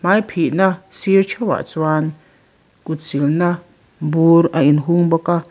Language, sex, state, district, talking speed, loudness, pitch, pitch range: Mizo, female, Mizoram, Aizawl, 140 wpm, -17 LUFS, 170 Hz, 155-185 Hz